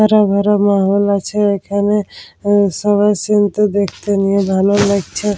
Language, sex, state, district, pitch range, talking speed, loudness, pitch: Bengali, female, West Bengal, Jalpaiguri, 200-210 Hz, 145 wpm, -14 LUFS, 205 Hz